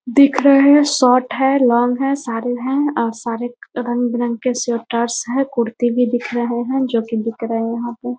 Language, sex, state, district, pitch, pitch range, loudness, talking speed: Hindi, female, Bihar, Muzaffarpur, 245 Hz, 235-265 Hz, -17 LUFS, 185 wpm